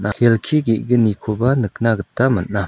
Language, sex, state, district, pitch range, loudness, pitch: Garo, male, Meghalaya, South Garo Hills, 105-125 Hz, -17 LUFS, 115 Hz